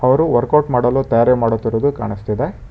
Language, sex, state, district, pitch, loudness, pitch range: Kannada, male, Karnataka, Bangalore, 120 Hz, -16 LUFS, 115-135 Hz